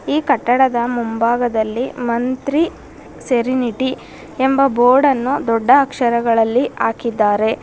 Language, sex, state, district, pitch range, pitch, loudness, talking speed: Kannada, female, Karnataka, Bangalore, 235-265 Hz, 245 Hz, -16 LUFS, 85 wpm